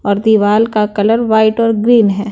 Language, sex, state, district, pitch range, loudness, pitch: Hindi, female, Bihar, Patna, 205-225 Hz, -12 LUFS, 220 Hz